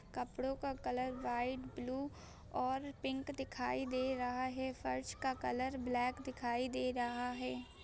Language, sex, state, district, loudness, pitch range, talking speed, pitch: Hindi, female, Bihar, Begusarai, -40 LUFS, 245-265 Hz, 145 wpm, 255 Hz